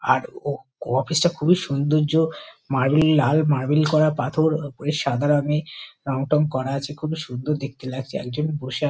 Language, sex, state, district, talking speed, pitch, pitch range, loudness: Bengali, female, West Bengal, Kolkata, 150 wpm, 150 Hz, 135-155 Hz, -22 LUFS